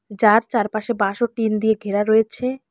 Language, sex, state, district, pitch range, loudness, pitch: Bengali, female, West Bengal, Alipurduar, 210-235 Hz, -19 LUFS, 220 Hz